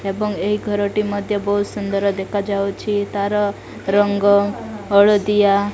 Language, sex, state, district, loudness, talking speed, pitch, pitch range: Odia, female, Odisha, Malkangiri, -18 LUFS, 115 wpm, 205 Hz, 200-205 Hz